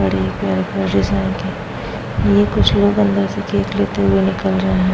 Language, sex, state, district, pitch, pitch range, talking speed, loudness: Hindi, female, Bihar, Vaishali, 100 Hz, 95-100 Hz, 170 wpm, -17 LUFS